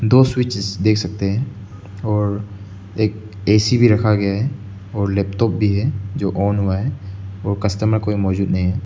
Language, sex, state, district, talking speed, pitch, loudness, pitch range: Hindi, male, Arunachal Pradesh, Lower Dibang Valley, 175 wpm, 100 Hz, -19 LUFS, 100-110 Hz